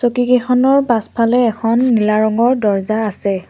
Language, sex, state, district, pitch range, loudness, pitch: Assamese, female, Assam, Sonitpur, 215-245 Hz, -14 LUFS, 230 Hz